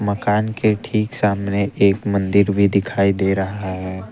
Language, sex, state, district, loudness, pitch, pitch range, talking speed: Hindi, male, Assam, Kamrup Metropolitan, -19 LUFS, 100 Hz, 100-105 Hz, 160 wpm